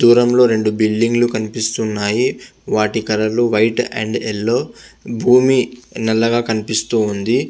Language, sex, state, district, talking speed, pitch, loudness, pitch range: Telugu, male, Andhra Pradesh, Visakhapatnam, 135 wpm, 115 Hz, -16 LUFS, 110-120 Hz